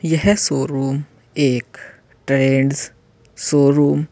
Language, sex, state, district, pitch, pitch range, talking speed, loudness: Hindi, male, Uttar Pradesh, Saharanpur, 140 Hz, 135-145 Hz, 85 wpm, -17 LUFS